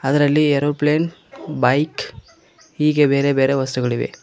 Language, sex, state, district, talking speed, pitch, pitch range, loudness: Kannada, male, Karnataka, Koppal, 100 wpm, 145 Hz, 135-150 Hz, -18 LUFS